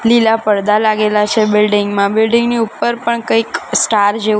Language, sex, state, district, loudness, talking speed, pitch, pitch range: Gujarati, female, Gujarat, Gandhinagar, -13 LUFS, 175 wpm, 215 Hz, 210-230 Hz